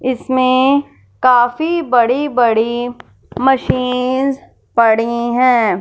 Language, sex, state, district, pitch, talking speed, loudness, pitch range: Hindi, female, Punjab, Fazilka, 250 Hz, 70 wpm, -14 LUFS, 235-260 Hz